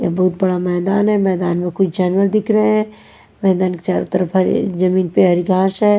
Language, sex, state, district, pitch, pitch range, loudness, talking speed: Hindi, female, Punjab, Pathankot, 185 Hz, 180-200 Hz, -16 LUFS, 200 wpm